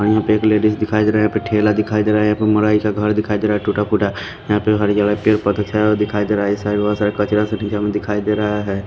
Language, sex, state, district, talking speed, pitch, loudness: Hindi, male, Himachal Pradesh, Shimla, 290 wpm, 105 Hz, -17 LUFS